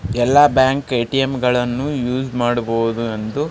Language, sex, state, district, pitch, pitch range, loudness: Kannada, male, Karnataka, Raichur, 125 Hz, 120-135 Hz, -17 LUFS